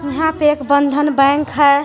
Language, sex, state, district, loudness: Hindi, female, Jharkhand, Garhwa, -14 LUFS